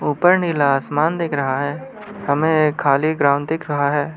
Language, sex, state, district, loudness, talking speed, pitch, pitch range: Hindi, male, Arunachal Pradesh, Lower Dibang Valley, -18 LUFS, 185 wpm, 150 Hz, 140-160 Hz